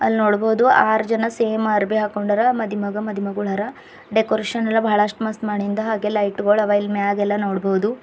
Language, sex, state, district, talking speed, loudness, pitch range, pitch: Kannada, female, Karnataka, Bidar, 180 wpm, -20 LUFS, 205-220 Hz, 210 Hz